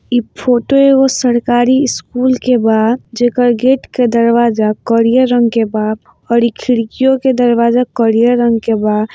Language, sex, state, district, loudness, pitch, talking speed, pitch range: Hindi, female, Bihar, East Champaran, -12 LUFS, 240 Hz, 150 wpm, 230-250 Hz